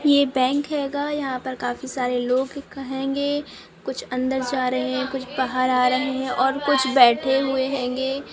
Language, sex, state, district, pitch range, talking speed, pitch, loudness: Hindi, female, Andhra Pradesh, Anantapur, 255-275 Hz, 175 wpm, 265 Hz, -22 LUFS